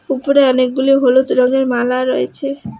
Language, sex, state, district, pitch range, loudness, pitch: Bengali, female, West Bengal, Alipurduar, 255-275 Hz, -14 LUFS, 260 Hz